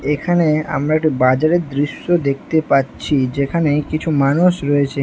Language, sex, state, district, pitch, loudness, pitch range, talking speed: Bengali, female, West Bengal, Alipurduar, 150 Hz, -17 LUFS, 140-160 Hz, 130 wpm